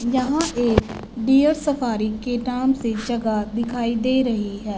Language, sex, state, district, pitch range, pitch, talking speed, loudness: Hindi, female, Punjab, Fazilka, 225-255 Hz, 240 Hz, 150 wpm, -21 LUFS